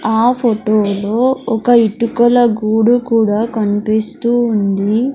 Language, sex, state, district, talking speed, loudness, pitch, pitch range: Telugu, male, Andhra Pradesh, Sri Satya Sai, 95 wpm, -14 LUFS, 225 Hz, 215-240 Hz